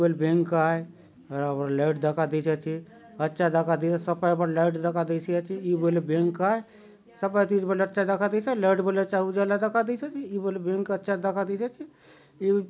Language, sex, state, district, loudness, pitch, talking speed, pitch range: Halbi, male, Chhattisgarh, Bastar, -26 LUFS, 185 Hz, 215 wpm, 165-200 Hz